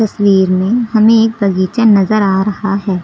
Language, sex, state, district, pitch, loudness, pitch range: Hindi, female, Uttar Pradesh, Lucknow, 205 Hz, -12 LUFS, 195-220 Hz